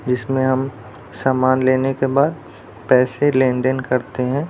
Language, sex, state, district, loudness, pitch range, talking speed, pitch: Hindi, male, Bihar, Jamui, -18 LUFS, 125-135 Hz, 135 wpm, 130 Hz